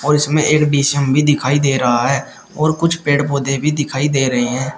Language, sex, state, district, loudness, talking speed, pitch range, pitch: Hindi, male, Uttar Pradesh, Shamli, -15 LUFS, 225 wpm, 135-150 Hz, 145 Hz